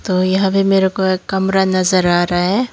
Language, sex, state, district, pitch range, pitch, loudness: Hindi, female, Tripura, Dhalai, 185-195 Hz, 190 Hz, -15 LUFS